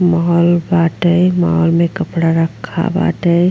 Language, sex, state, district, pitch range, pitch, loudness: Bhojpuri, female, Uttar Pradesh, Ghazipur, 165-175 Hz, 170 Hz, -14 LUFS